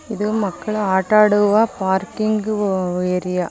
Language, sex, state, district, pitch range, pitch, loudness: Kannada, female, Karnataka, Bangalore, 190-215 Hz, 205 Hz, -18 LUFS